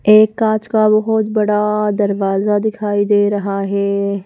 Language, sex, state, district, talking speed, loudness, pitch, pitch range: Hindi, female, Madhya Pradesh, Bhopal, 140 wpm, -15 LUFS, 210 Hz, 200-215 Hz